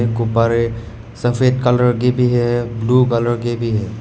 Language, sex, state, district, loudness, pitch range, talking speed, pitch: Hindi, male, Meghalaya, West Garo Hills, -16 LUFS, 115-125 Hz, 165 wpm, 120 Hz